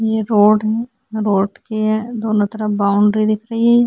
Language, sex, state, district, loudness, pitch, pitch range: Hindi, female, Chhattisgarh, Korba, -17 LUFS, 215 Hz, 210-220 Hz